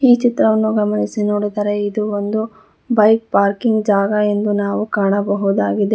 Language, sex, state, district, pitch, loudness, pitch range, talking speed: Kannada, female, Karnataka, Bangalore, 210 Hz, -17 LUFS, 205-220 Hz, 120 wpm